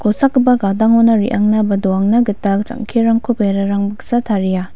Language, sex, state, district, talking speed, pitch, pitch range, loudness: Garo, female, Meghalaya, West Garo Hills, 125 wpm, 215 Hz, 200-230 Hz, -15 LUFS